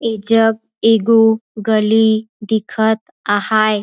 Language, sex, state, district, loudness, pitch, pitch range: Surgujia, female, Chhattisgarh, Sarguja, -15 LUFS, 220 Hz, 215-225 Hz